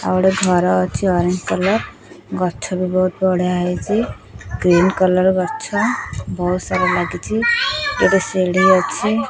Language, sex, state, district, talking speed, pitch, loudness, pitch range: Odia, female, Odisha, Khordha, 125 wpm, 185 Hz, -17 LUFS, 180-190 Hz